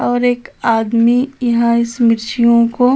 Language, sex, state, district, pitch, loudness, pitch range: Hindi, female, Chhattisgarh, Balrampur, 235 Hz, -14 LUFS, 235-245 Hz